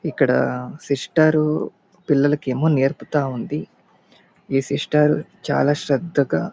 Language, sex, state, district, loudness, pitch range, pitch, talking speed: Telugu, male, Andhra Pradesh, Anantapur, -20 LUFS, 135-160 Hz, 145 Hz, 90 wpm